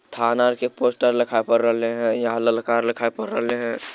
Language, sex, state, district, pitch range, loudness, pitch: Magahi, male, Bihar, Jamui, 115-120 Hz, -21 LUFS, 115 Hz